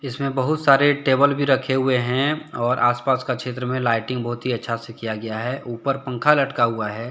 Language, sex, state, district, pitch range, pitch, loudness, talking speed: Hindi, male, Jharkhand, Deoghar, 120-135 Hz, 130 Hz, -21 LUFS, 210 wpm